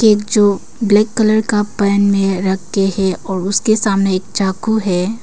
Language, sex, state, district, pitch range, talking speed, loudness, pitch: Hindi, female, Arunachal Pradesh, Papum Pare, 190-215 Hz, 170 wpm, -15 LUFS, 200 Hz